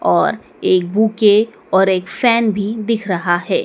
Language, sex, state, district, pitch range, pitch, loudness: Hindi, female, Madhya Pradesh, Dhar, 190-225 Hz, 205 Hz, -16 LUFS